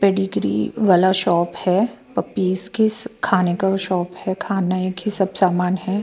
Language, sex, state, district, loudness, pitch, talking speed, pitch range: Hindi, female, Bihar, Patna, -19 LUFS, 190 Hz, 170 wpm, 180-195 Hz